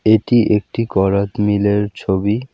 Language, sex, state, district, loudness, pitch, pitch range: Bengali, male, West Bengal, Alipurduar, -16 LUFS, 105 Hz, 100-110 Hz